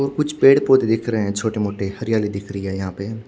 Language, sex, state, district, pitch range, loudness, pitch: Hindi, male, Odisha, Khordha, 100-125 Hz, -19 LUFS, 110 Hz